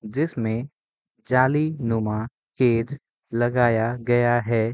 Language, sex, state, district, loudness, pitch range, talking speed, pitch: Hindi, male, Bihar, Sitamarhi, -23 LUFS, 115-130 Hz, 90 wpm, 120 Hz